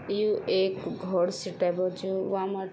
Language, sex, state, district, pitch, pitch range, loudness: Garhwali, female, Uttarakhand, Tehri Garhwal, 190 Hz, 185-195 Hz, -29 LUFS